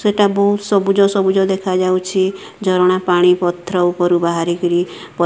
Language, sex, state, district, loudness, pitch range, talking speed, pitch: Odia, female, Odisha, Sambalpur, -15 LUFS, 175-195 Hz, 150 wpm, 185 Hz